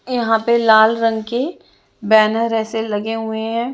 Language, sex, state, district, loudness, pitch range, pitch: Hindi, female, Chandigarh, Chandigarh, -16 LUFS, 220-235 Hz, 225 Hz